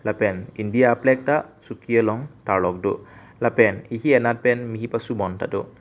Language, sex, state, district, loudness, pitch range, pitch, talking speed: Karbi, male, Assam, Karbi Anglong, -22 LUFS, 105-125 Hz, 115 Hz, 165 wpm